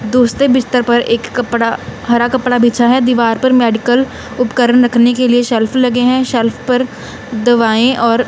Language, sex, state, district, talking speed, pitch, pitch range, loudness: Hindi, female, Punjab, Kapurthala, 165 wpm, 245 Hz, 235-250 Hz, -12 LUFS